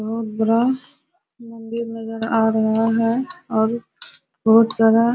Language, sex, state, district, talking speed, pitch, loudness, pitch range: Hindi, female, Bihar, Araria, 130 wpm, 230 Hz, -19 LUFS, 225-240 Hz